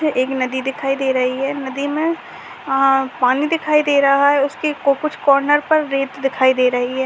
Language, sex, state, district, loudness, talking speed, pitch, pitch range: Hindi, male, Chhattisgarh, Sarguja, -17 LUFS, 205 wpm, 275 Hz, 265-290 Hz